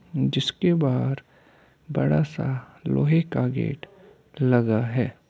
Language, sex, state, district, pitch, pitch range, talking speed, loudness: Hindi, male, Uttar Pradesh, Hamirpur, 130 Hz, 115-150 Hz, 100 wpm, -24 LUFS